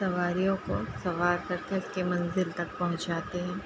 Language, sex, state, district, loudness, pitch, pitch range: Hindi, female, Uttar Pradesh, Jalaun, -30 LUFS, 180 Hz, 175-185 Hz